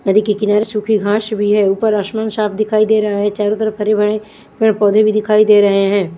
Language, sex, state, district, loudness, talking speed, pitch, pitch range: Hindi, female, Chandigarh, Chandigarh, -14 LUFS, 245 wpm, 210 Hz, 205-215 Hz